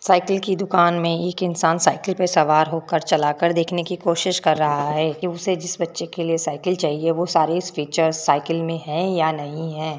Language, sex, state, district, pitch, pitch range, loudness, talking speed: Hindi, female, Rajasthan, Churu, 165 Hz, 155-180 Hz, -21 LUFS, 215 wpm